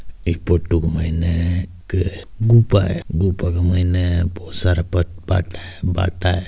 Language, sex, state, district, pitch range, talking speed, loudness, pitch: Hindi, male, Rajasthan, Nagaur, 85-90 Hz, 140 wpm, -19 LUFS, 90 Hz